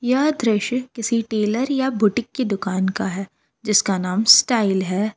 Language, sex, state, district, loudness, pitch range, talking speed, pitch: Hindi, female, Jharkhand, Palamu, -19 LUFS, 195-245 Hz, 160 wpm, 220 Hz